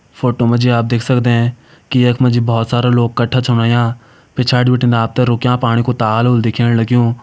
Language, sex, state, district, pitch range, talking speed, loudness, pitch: Hindi, male, Uttarakhand, Uttarkashi, 115-125 Hz, 225 wpm, -14 LUFS, 120 Hz